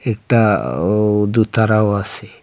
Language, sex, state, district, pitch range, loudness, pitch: Bengali, male, Assam, Hailakandi, 105-110 Hz, -16 LUFS, 105 Hz